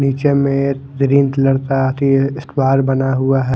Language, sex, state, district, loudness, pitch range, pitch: Hindi, male, Haryana, Jhajjar, -15 LUFS, 135-140 Hz, 135 Hz